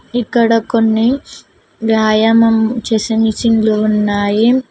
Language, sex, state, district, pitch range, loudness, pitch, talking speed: Telugu, female, Telangana, Mahabubabad, 215-230 Hz, -13 LUFS, 225 Hz, 90 wpm